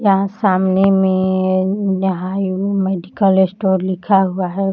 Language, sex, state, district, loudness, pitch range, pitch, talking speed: Hindi, female, Uttar Pradesh, Budaun, -16 LUFS, 185-195 Hz, 190 Hz, 125 wpm